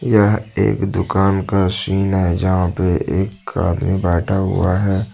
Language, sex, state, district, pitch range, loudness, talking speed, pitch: Hindi, male, Jharkhand, Deoghar, 95-100 Hz, -17 LUFS, 150 wpm, 95 Hz